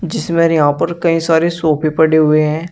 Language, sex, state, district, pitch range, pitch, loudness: Hindi, male, Uttar Pradesh, Shamli, 155-170 Hz, 160 Hz, -13 LUFS